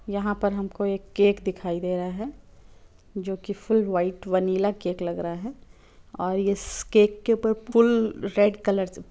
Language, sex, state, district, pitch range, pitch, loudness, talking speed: Hindi, female, Chhattisgarh, Bilaspur, 185-210 Hz, 200 Hz, -25 LUFS, 180 wpm